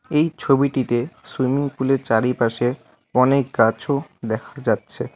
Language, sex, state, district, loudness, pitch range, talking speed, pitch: Bengali, male, West Bengal, Alipurduar, -21 LUFS, 120-140 Hz, 105 wpm, 130 Hz